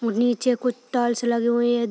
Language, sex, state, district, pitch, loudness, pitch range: Hindi, female, Uttar Pradesh, Deoria, 240 Hz, -22 LUFS, 235-245 Hz